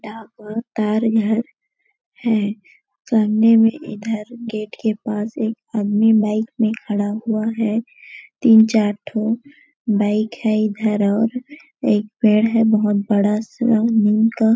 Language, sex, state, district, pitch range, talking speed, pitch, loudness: Hindi, female, Chhattisgarh, Bilaspur, 215-230 Hz, 125 wpm, 220 Hz, -18 LUFS